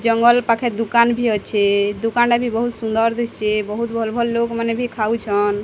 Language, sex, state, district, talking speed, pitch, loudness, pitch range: Odia, female, Odisha, Sambalpur, 190 wpm, 230 Hz, -18 LUFS, 215-235 Hz